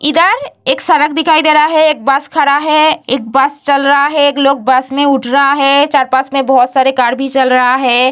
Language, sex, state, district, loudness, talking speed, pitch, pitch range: Hindi, female, Bihar, Vaishali, -10 LUFS, 220 wpm, 275 Hz, 265-300 Hz